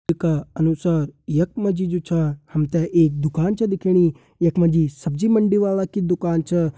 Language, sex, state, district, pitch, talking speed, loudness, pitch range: Hindi, male, Uttarakhand, Tehri Garhwal, 170 Hz, 195 wpm, -20 LUFS, 160-185 Hz